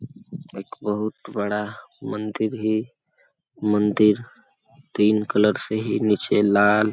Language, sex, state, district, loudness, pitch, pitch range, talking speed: Awadhi, male, Chhattisgarh, Balrampur, -22 LUFS, 105 Hz, 105-110 Hz, 105 wpm